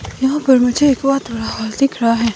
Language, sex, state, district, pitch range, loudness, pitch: Hindi, female, Himachal Pradesh, Shimla, 230-275 Hz, -16 LUFS, 260 Hz